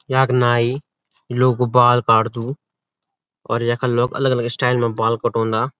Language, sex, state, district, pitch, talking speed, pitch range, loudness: Garhwali, male, Uttarakhand, Uttarkashi, 120 Hz, 155 wpm, 115-125 Hz, -18 LUFS